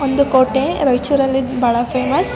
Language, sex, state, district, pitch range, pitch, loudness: Kannada, male, Karnataka, Raichur, 255-275 Hz, 265 Hz, -16 LUFS